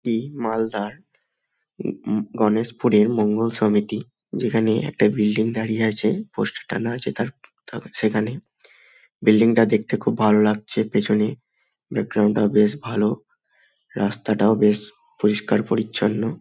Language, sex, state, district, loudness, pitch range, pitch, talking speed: Bengali, male, West Bengal, Malda, -21 LUFS, 105-110 Hz, 110 Hz, 105 wpm